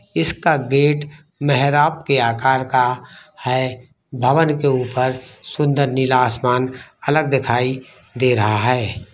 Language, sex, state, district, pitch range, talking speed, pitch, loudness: Hindi, male, Bihar, East Champaran, 125-145 Hz, 120 wpm, 130 Hz, -18 LUFS